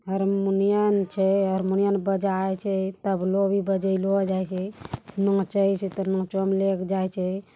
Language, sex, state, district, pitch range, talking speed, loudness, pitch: Angika, female, Bihar, Bhagalpur, 190-195 Hz, 85 wpm, -24 LUFS, 195 Hz